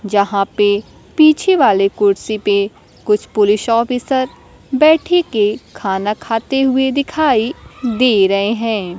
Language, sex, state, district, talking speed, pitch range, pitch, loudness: Hindi, female, Bihar, Kaimur, 120 wpm, 205-265 Hz, 220 Hz, -15 LUFS